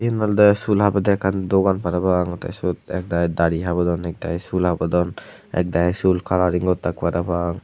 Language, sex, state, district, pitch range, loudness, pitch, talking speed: Chakma, male, Tripura, Unakoti, 85-95 Hz, -20 LUFS, 90 Hz, 180 wpm